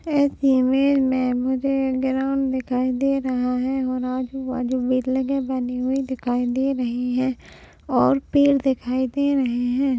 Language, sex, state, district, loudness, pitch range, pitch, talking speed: Hindi, female, Maharashtra, Aurangabad, -22 LUFS, 255-270 Hz, 260 Hz, 150 wpm